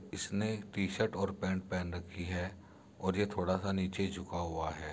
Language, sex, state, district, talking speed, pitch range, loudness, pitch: Hindi, male, Uttar Pradesh, Muzaffarnagar, 180 wpm, 90-100 Hz, -37 LUFS, 95 Hz